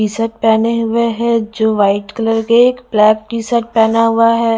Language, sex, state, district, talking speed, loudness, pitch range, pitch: Hindi, female, Chhattisgarh, Raipur, 210 wpm, -13 LUFS, 220-230 Hz, 225 Hz